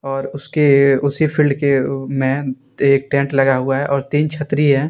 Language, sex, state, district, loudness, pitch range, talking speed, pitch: Hindi, male, Jharkhand, Deoghar, -16 LUFS, 135-145 Hz, 185 wpm, 140 Hz